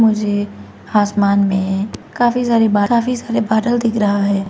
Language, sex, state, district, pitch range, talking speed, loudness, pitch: Hindi, female, Arunachal Pradesh, Lower Dibang Valley, 200-230 Hz, 160 wpm, -16 LUFS, 210 Hz